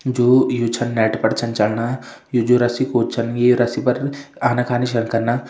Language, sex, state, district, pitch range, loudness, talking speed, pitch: Hindi, male, Uttarakhand, Uttarkashi, 115-125 Hz, -18 LUFS, 205 wpm, 120 Hz